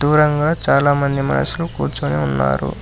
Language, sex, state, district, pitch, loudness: Telugu, male, Telangana, Hyderabad, 140 Hz, -17 LUFS